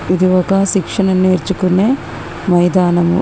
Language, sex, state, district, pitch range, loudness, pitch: Telugu, female, Telangana, Komaram Bheem, 180-195 Hz, -14 LUFS, 185 Hz